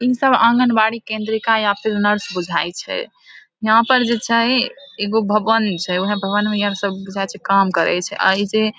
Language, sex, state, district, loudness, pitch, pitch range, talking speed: Maithili, female, Bihar, Samastipur, -17 LUFS, 215 Hz, 195-230 Hz, 205 wpm